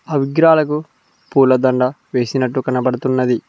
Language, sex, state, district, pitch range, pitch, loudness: Telugu, male, Telangana, Mahabubabad, 130-150 Hz, 130 Hz, -16 LUFS